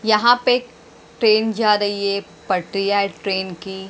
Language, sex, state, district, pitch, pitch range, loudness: Hindi, female, Maharashtra, Mumbai Suburban, 200 Hz, 195-220 Hz, -19 LUFS